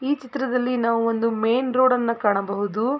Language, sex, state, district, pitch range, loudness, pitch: Kannada, female, Karnataka, Mysore, 225-255 Hz, -22 LUFS, 235 Hz